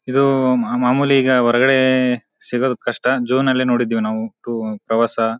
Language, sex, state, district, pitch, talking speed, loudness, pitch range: Kannada, male, Karnataka, Bijapur, 125 Hz, 135 wpm, -17 LUFS, 115-130 Hz